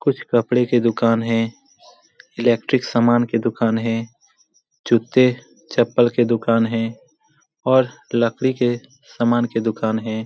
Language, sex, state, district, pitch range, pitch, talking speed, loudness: Hindi, male, Bihar, Jamui, 115-120 Hz, 115 Hz, 130 wpm, -19 LUFS